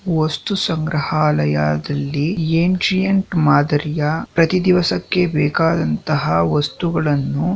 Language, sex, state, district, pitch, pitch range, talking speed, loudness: Kannada, male, Karnataka, Shimoga, 155 Hz, 145-180 Hz, 55 wpm, -18 LUFS